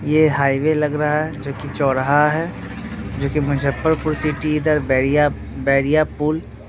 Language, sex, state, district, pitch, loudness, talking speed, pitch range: Hindi, male, Bihar, Muzaffarpur, 150 Hz, -19 LUFS, 145 wpm, 140-155 Hz